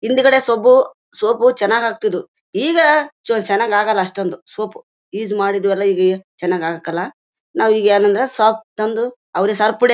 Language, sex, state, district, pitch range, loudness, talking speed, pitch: Kannada, female, Karnataka, Bellary, 200-260 Hz, -16 LUFS, 110 wpm, 215 Hz